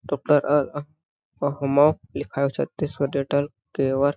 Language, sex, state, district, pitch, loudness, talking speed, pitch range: Hindi, male, Chhattisgarh, Balrampur, 145 Hz, -23 LUFS, 100 wpm, 140-150 Hz